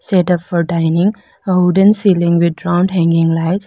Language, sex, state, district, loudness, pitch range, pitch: English, female, Arunachal Pradesh, Lower Dibang Valley, -14 LUFS, 170-185 Hz, 175 Hz